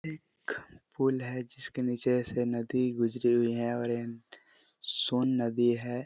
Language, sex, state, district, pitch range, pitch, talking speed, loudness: Hindi, male, Chhattisgarh, Korba, 120-125 Hz, 120 Hz, 150 wpm, -31 LUFS